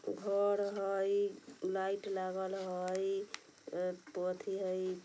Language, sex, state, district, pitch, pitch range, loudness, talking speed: Bajjika, female, Bihar, Vaishali, 190 Hz, 185-200 Hz, -37 LUFS, 95 wpm